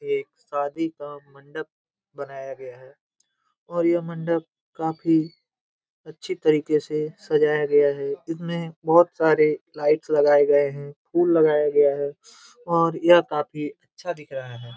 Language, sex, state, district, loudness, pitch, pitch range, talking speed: Hindi, male, Jharkhand, Jamtara, -22 LUFS, 150 Hz, 145-165 Hz, 140 wpm